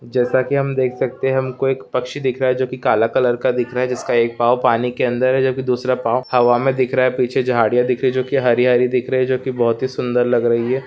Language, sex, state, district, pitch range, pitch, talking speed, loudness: Hindi, male, Maharashtra, Solapur, 125-130 Hz, 125 Hz, 285 wpm, -18 LUFS